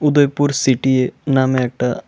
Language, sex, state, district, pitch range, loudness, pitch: Bengali, male, Tripura, West Tripura, 125-145 Hz, -16 LUFS, 130 Hz